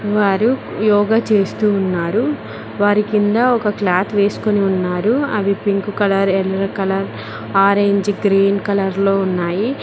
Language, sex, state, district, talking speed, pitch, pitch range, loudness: Telugu, female, Telangana, Mahabubabad, 120 wpm, 200 Hz, 195-210 Hz, -16 LUFS